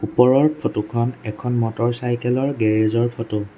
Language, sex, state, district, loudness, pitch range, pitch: Assamese, male, Assam, Sonitpur, -20 LUFS, 110-125 Hz, 120 Hz